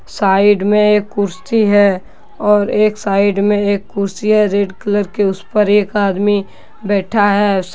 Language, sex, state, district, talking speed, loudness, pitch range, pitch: Hindi, male, Jharkhand, Deoghar, 155 wpm, -14 LUFS, 200-210 Hz, 205 Hz